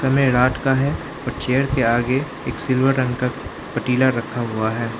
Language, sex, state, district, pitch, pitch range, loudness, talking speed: Hindi, male, Arunachal Pradesh, Lower Dibang Valley, 130 Hz, 120-135 Hz, -20 LUFS, 190 wpm